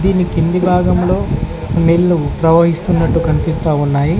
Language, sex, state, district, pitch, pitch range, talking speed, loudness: Telugu, male, Telangana, Mahabubabad, 165 Hz, 155-180 Hz, 100 wpm, -14 LUFS